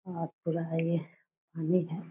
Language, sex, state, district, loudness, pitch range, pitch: Hindi, female, Bihar, Purnia, -32 LUFS, 165-175 Hz, 165 Hz